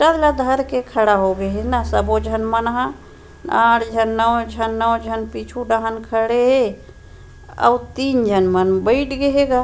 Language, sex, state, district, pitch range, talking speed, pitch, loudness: Chhattisgarhi, female, Chhattisgarh, Rajnandgaon, 225-255 Hz, 195 wpm, 230 Hz, -18 LUFS